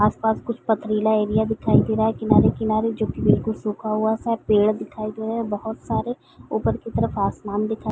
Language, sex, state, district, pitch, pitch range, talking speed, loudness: Hindi, female, Chhattisgarh, Raigarh, 220 Hz, 215-220 Hz, 220 wpm, -22 LUFS